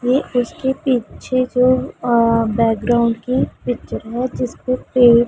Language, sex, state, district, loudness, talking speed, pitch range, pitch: Hindi, female, Punjab, Pathankot, -18 LUFS, 125 wpm, 235-255 Hz, 245 Hz